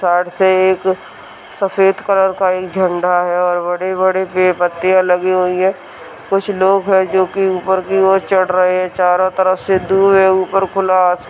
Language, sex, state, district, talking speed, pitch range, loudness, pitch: Hindi, male, Chhattisgarh, Raigarh, 175 wpm, 185-190 Hz, -14 LUFS, 185 Hz